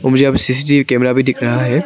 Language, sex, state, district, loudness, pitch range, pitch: Hindi, male, Arunachal Pradesh, Papum Pare, -13 LUFS, 125-140 Hz, 130 Hz